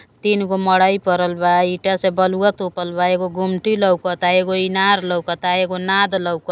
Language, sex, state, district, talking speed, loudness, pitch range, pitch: Bhojpuri, female, Uttar Pradesh, Deoria, 175 wpm, -17 LUFS, 180-190 Hz, 185 Hz